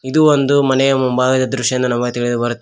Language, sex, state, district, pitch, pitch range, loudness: Kannada, male, Karnataka, Koppal, 130 Hz, 125-135 Hz, -15 LUFS